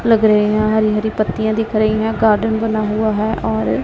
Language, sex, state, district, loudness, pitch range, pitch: Hindi, female, Punjab, Pathankot, -16 LUFS, 210-220 Hz, 215 Hz